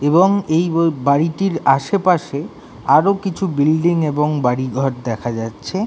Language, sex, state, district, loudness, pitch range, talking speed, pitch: Bengali, male, West Bengal, Kolkata, -17 LUFS, 135-180 Hz, 125 wpm, 155 Hz